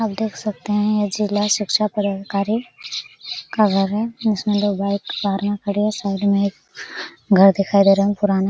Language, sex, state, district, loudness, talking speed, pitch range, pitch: Hindi, female, Jharkhand, Sahebganj, -19 LUFS, 205 wpm, 200-210 Hz, 205 Hz